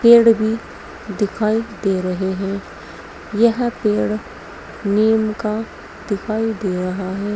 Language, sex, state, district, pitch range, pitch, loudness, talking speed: Hindi, female, Uttar Pradesh, Saharanpur, 195-220 Hz, 210 Hz, -19 LUFS, 115 wpm